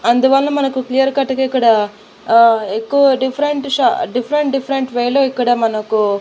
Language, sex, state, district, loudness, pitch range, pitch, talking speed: Telugu, female, Andhra Pradesh, Annamaya, -15 LUFS, 230-275 Hz, 260 Hz, 135 wpm